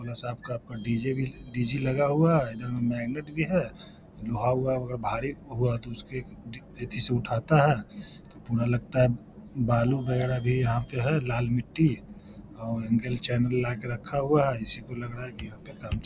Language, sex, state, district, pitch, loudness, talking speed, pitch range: Hindi, male, Bihar, Lakhisarai, 125 Hz, -28 LUFS, 185 wpm, 115-130 Hz